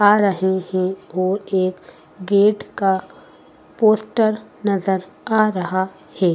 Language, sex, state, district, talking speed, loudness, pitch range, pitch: Hindi, female, Madhya Pradesh, Bhopal, 115 wpm, -19 LUFS, 185-210 Hz, 190 Hz